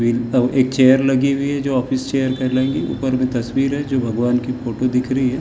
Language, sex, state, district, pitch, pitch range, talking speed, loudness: Hindi, male, Maharashtra, Gondia, 130 Hz, 125-135 Hz, 220 wpm, -18 LUFS